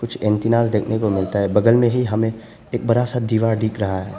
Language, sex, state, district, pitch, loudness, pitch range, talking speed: Hindi, male, Arunachal Pradesh, Papum Pare, 110 Hz, -19 LUFS, 105-115 Hz, 245 wpm